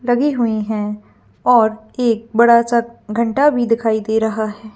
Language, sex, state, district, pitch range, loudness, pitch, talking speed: Hindi, female, Chhattisgarh, Bilaspur, 220-240 Hz, -16 LUFS, 230 Hz, 165 wpm